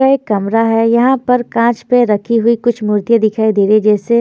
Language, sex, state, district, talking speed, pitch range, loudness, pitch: Hindi, female, Punjab, Fazilka, 240 wpm, 215-240 Hz, -13 LUFS, 230 Hz